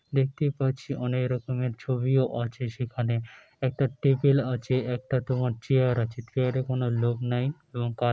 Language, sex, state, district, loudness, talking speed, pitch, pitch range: Bengali, male, West Bengal, Dakshin Dinajpur, -27 LUFS, 160 wpm, 125 Hz, 120-135 Hz